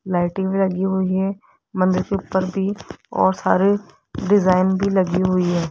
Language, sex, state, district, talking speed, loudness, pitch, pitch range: Hindi, female, Rajasthan, Jaipur, 155 wpm, -20 LUFS, 190 Hz, 185-195 Hz